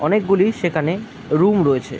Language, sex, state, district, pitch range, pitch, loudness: Bengali, male, West Bengal, Jalpaiguri, 155-205 Hz, 190 Hz, -18 LUFS